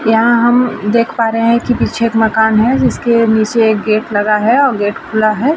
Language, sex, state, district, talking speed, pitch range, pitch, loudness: Hindi, female, Uttar Pradesh, Varanasi, 225 wpm, 215-235 Hz, 225 Hz, -12 LUFS